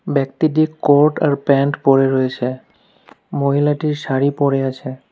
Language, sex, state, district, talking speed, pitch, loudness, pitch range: Bengali, male, West Bengal, Alipurduar, 115 wpm, 140 Hz, -17 LUFS, 135-145 Hz